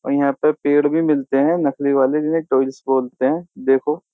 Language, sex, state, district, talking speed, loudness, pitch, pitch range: Hindi, male, Uttar Pradesh, Jyotiba Phule Nagar, 215 wpm, -18 LUFS, 140 Hz, 135-150 Hz